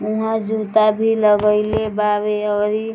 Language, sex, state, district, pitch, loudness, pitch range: Bhojpuri, female, Bihar, East Champaran, 215 Hz, -17 LUFS, 210-220 Hz